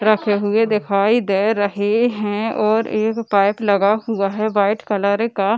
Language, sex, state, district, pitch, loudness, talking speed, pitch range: Hindi, female, Bihar, Gaya, 210 Hz, -18 LUFS, 185 wpm, 200-220 Hz